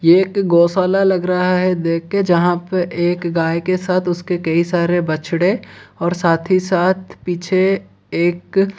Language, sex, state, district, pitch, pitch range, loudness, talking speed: Hindi, male, Odisha, Khordha, 175 Hz, 170-185 Hz, -17 LUFS, 165 wpm